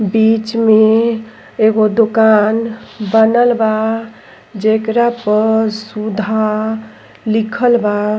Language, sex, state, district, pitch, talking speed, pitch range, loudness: Bhojpuri, female, Uttar Pradesh, Ghazipur, 220 Hz, 80 wpm, 215-225 Hz, -13 LUFS